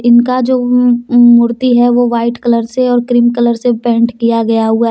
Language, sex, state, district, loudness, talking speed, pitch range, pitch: Hindi, female, Jharkhand, Deoghar, -11 LUFS, 210 wpm, 235-245 Hz, 240 Hz